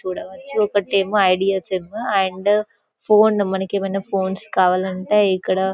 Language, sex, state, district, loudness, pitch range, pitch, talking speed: Telugu, female, Telangana, Karimnagar, -19 LUFS, 190-210 Hz, 195 Hz, 105 wpm